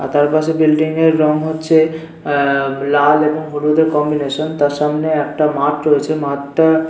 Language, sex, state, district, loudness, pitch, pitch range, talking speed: Bengali, male, West Bengal, Paschim Medinipur, -15 LUFS, 150 Hz, 145-155 Hz, 155 wpm